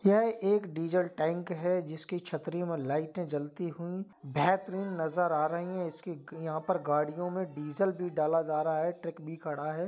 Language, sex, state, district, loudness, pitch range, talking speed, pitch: Hindi, male, Uttar Pradesh, Jalaun, -32 LUFS, 155-180 Hz, 190 wpm, 170 Hz